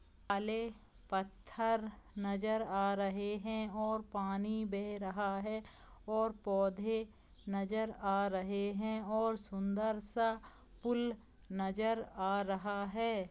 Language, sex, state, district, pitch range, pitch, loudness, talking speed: Hindi, female, Jharkhand, Jamtara, 200-220 Hz, 210 Hz, -38 LUFS, 115 wpm